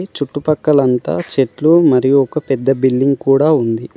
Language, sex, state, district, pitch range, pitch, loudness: Telugu, male, Telangana, Mahabubabad, 130-150 Hz, 135 Hz, -14 LUFS